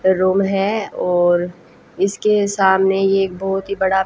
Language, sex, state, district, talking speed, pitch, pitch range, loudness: Hindi, female, Haryana, Jhajjar, 135 wpm, 195 Hz, 185-195 Hz, -17 LUFS